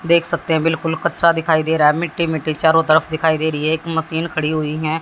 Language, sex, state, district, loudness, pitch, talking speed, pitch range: Hindi, female, Haryana, Jhajjar, -17 LUFS, 160 Hz, 265 wpm, 155-165 Hz